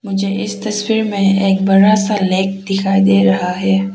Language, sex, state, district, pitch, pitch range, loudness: Hindi, female, Arunachal Pradesh, Papum Pare, 195 Hz, 190-205 Hz, -14 LUFS